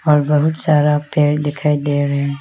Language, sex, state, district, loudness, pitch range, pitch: Hindi, female, Arunachal Pradesh, Lower Dibang Valley, -16 LUFS, 145-150 Hz, 150 Hz